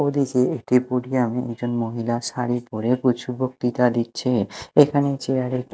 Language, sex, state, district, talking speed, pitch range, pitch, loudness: Bengali, male, Odisha, Malkangiri, 135 wpm, 120-130 Hz, 125 Hz, -22 LUFS